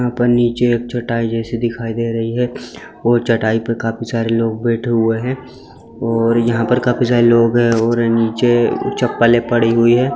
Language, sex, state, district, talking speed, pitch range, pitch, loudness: Hindi, male, Bihar, Muzaffarpur, 190 wpm, 115-120 Hz, 115 Hz, -16 LUFS